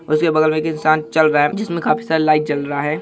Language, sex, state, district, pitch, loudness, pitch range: Hindi, male, Bihar, Saharsa, 155 Hz, -17 LUFS, 150-160 Hz